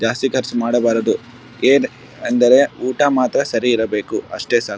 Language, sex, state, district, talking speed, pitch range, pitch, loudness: Kannada, male, Karnataka, Bellary, 140 wpm, 115-130 Hz, 120 Hz, -17 LUFS